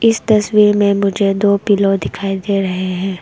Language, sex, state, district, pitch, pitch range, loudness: Hindi, female, Arunachal Pradesh, Longding, 200 Hz, 195-205 Hz, -15 LUFS